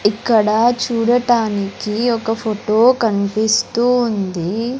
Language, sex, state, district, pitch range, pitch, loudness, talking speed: Telugu, male, Andhra Pradesh, Sri Satya Sai, 210-240 Hz, 225 Hz, -16 LUFS, 75 wpm